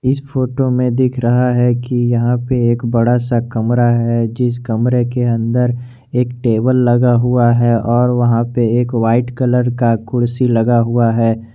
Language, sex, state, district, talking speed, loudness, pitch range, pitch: Hindi, male, Jharkhand, Garhwa, 175 wpm, -14 LUFS, 120-125 Hz, 120 Hz